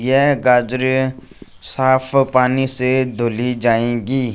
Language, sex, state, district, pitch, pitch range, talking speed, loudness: Hindi, male, Punjab, Fazilka, 130 Hz, 125-130 Hz, 95 wpm, -16 LUFS